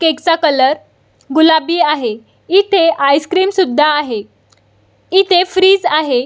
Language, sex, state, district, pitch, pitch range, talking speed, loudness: Marathi, female, Maharashtra, Solapur, 320 Hz, 280-370 Hz, 115 wpm, -12 LUFS